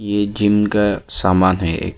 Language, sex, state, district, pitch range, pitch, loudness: Hindi, male, Arunachal Pradesh, Papum Pare, 90-105 Hz, 105 Hz, -17 LUFS